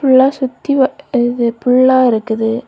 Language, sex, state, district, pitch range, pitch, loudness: Tamil, female, Tamil Nadu, Kanyakumari, 235-265 Hz, 255 Hz, -13 LUFS